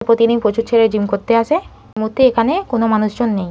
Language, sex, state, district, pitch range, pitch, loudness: Bengali, female, West Bengal, Malda, 215-235 Hz, 230 Hz, -16 LUFS